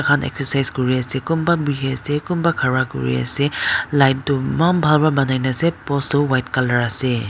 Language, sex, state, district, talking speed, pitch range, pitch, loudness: Nagamese, female, Nagaland, Dimapur, 190 wpm, 130-150 Hz, 135 Hz, -19 LUFS